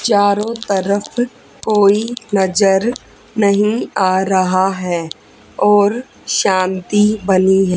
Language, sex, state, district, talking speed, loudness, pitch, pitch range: Hindi, female, Haryana, Charkhi Dadri, 95 wpm, -15 LUFS, 200 Hz, 190-215 Hz